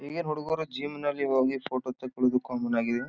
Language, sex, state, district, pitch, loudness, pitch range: Kannada, male, Karnataka, Bijapur, 130 Hz, -29 LUFS, 125-145 Hz